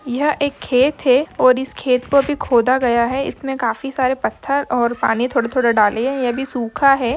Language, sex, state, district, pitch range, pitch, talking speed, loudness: Hindi, female, Maharashtra, Dhule, 240-275 Hz, 255 Hz, 220 wpm, -17 LUFS